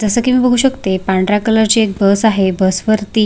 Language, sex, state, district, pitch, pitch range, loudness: Marathi, female, Maharashtra, Sindhudurg, 215 Hz, 195-225 Hz, -13 LUFS